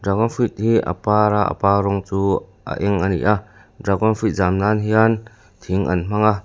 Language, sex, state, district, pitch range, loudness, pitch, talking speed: Mizo, male, Mizoram, Aizawl, 95-110 Hz, -19 LUFS, 105 Hz, 225 wpm